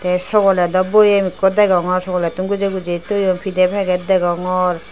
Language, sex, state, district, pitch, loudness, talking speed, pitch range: Chakma, female, Tripura, Dhalai, 185 Hz, -16 LUFS, 145 wpm, 180-195 Hz